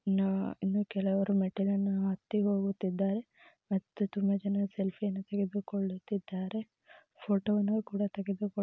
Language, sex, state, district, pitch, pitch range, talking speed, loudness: Kannada, female, Karnataka, Mysore, 200 Hz, 195-205 Hz, 105 wpm, -33 LUFS